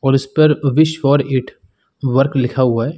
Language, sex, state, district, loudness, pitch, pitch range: Hindi, male, Uttar Pradesh, Muzaffarnagar, -15 LUFS, 135 Hz, 130-145 Hz